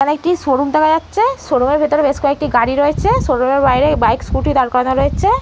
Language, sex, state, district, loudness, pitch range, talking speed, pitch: Bengali, female, West Bengal, North 24 Parganas, -14 LUFS, 265-305 Hz, 230 wpm, 285 Hz